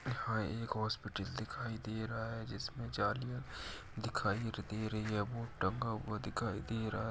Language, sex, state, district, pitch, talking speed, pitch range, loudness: Hindi, male, Uttar Pradesh, Etah, 110 Hz, 170 wpm, 105-115 Hz, -40 LUFS